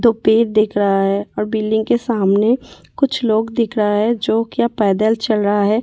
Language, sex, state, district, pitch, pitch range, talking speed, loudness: Hindi, female, Delhi, New Delhi, 220 Hz, 210-230 Hz, 205 wpm, -17 LUFS